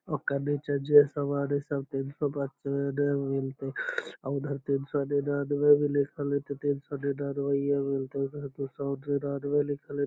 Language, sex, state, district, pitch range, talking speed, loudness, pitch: Magahi, male, Bihar, Lakhisarai, 140-145 Hz, 180 wpm, -29 LUFS, 140 Hz